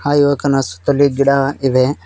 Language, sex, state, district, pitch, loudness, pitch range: Kannada, male, Karnataka, Koppal, 140 Hz, -15 LUFS, 135-140 Hz